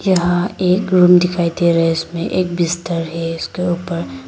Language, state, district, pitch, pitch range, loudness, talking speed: Hindi, Arunachal Pradesh, Lower Dibang Valley, 175 Hz, 165-180 Hz, -16 LUFS, 180 wpm